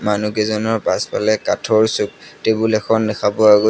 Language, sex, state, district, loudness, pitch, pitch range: Assamese, male, Assam, Sonitpur, -17 LUFS, 110 Hz, 105-110 Hz